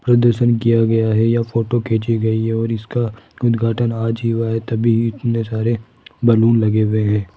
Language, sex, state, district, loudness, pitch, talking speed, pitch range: Hindi, male, Rajasthan, Jaipur, -17 LUFS, 115 Hz, 185 wpm, 110-115 Hz